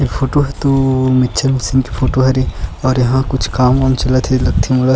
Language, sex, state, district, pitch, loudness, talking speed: Chhattisgarhi, male, Chhattisgarh, Sukma, 130 Hz, -14 LUFS, 230 wpm